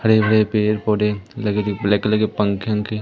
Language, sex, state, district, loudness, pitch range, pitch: Hindi, female, Madhya Pradesh, Umaria, -19 LUFS, 105-110 Hz, 105 Hz